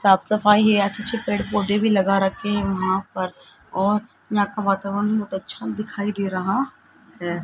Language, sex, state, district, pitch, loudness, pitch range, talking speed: Hindi, male, Rajasthan, Jaipur, 200 Hz, -22 LUFS, 190-210 Hz, 175 wpm